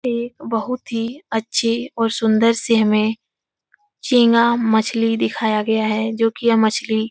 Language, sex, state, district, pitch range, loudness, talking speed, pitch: Hindi, female, Uttar Pradesh, Etah, 220-235 Hz, -18 LUFS, 150 wpm, 230 Hz